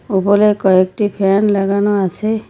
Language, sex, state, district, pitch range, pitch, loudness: Bengali, female, West Bengal, Cooch Behar, 195-210 Hz, 200 Hz, -14 LUFS